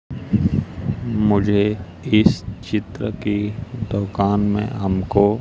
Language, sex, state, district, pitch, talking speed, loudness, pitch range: Hindi, male, Madhya Pradesh, Katni, 105 Hz, 75 wpm, -20 LUFS, 100-105 Hz